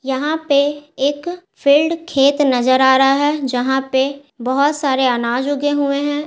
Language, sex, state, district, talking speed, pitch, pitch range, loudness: Hindi, female, Bihar, Gaya, 165 wpm, 280 Hz, 265-290 Hz, -16 LUFS